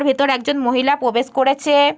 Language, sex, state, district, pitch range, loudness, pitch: Bengali, female, West Bengal, Jalpaiguri, 255-285 Hz, -17 LUFS, 275 Hz